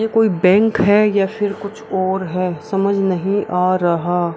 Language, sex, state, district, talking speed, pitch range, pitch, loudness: Hindi, female, Bihar, Araria, 190 wpm, 180-205 Hz, 195 Hz, -17 LUFS